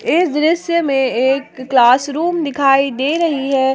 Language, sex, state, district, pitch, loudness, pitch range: Hindi, female, Jharkhand, Palamu, 280 Hz, -15 LUFS, 265-325 Hz